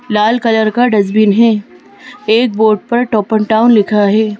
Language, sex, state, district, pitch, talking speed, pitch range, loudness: Hindi, female, Madhya Pradesh, Bhopal, 220 Hz, 165 wpm, 210-230 Hz, -11 LUFS